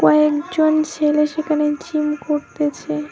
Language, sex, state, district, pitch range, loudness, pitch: Bengali, female, West Bengal, Alipurduar, 295-310 Hz, -19 LUFS, 300 Hz